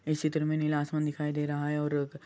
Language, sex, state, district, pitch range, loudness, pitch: Hindi, male, Andhra Pradesh, Anantapur, 145-155 Hz, -31 LUFS, 150 Hz